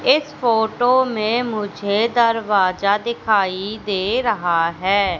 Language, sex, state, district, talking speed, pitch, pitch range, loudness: Hindi, female, Madhya Pradesh, Katni, 105 wpm, 215 Hz, 195-235 Hz, -19 LUFS